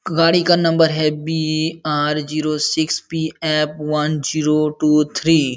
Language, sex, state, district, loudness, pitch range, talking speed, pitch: Hindi, male, Bihar, Jamui, -18 LUFS, 150-160 Hz, 160 wpm, 155 Hz